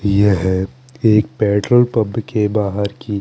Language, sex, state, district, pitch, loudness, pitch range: Hindi, male, Chandigarh, Chandigarh, 105 Hz, -16 LUFS, 100-115 Hz